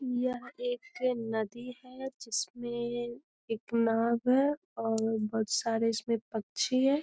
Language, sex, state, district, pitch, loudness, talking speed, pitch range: Hindi, female, Bihar, Jamui, 240 Hz, -32 LUFS, 130 wpm, 225-255 Hz